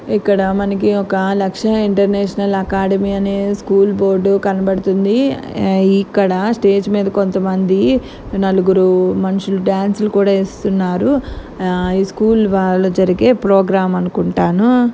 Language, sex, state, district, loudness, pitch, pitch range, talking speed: Telugu, female, Telangana, Nalgonda, -15 LUFS, 195 Hz, 190-200 Hz, 105 wpm